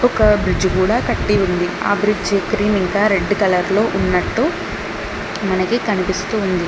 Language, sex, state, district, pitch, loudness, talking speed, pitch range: Telugu, female, Telangana, Mahabubabad, 200 Hz, -17 LUFS, 145 wpm, 185-210 Hz